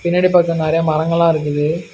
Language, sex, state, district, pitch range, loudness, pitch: Tamil, male, Karnataka, Bangalore, 155-170 Hz, -15 LUFS, 165 Hz